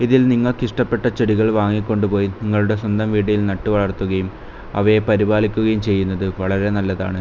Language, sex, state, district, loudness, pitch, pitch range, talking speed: Malayalam, male, Kerala, Kasaragod, -18 LUFS, 105 Hz, 100-110 Hz, 115 wpm